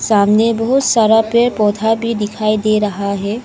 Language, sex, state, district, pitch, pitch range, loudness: Hindi, female, Arunachal Pradesh, Lower Dibang Valley, 215 Hz, 210-230 Hz, -14 LUFS